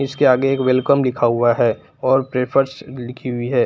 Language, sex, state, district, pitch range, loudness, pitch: Hindi, male, Jharkhand, Palamu, 125-135 Hz, -18 LUFS, 130 Hz